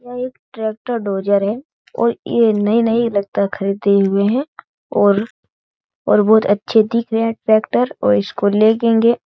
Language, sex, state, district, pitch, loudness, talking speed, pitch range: Hindi, female, Bihar, Jahanabad, 220 Hz, -16 LUFS, 155 wpm, 200-235 Hz